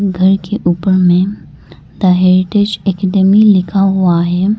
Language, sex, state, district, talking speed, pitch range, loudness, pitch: Hindi, female, Arunachal Pradesh, Lower Dibang Valley, 130 wpm, 185-200 Hz, -11 LUFS, 190 Hz